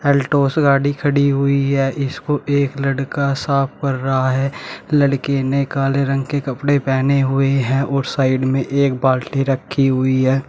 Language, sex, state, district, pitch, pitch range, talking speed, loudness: Hindi, male, Uttar Pradesh, Shamli, 140 Hz, 135-140 Hz, 165 wpm, -17 LUFS